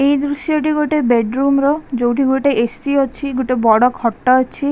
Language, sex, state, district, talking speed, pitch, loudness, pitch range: Odia, female, Odisha, Khordha, 190 wpm, 270 Hz, -16 LUFS, 250-285 Hz